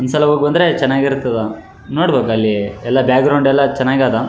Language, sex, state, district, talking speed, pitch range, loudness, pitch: Kannada, male, Karnataka, Raichur, 170 wpm, 115-140 Hz, -15 LUFS, 130 Hz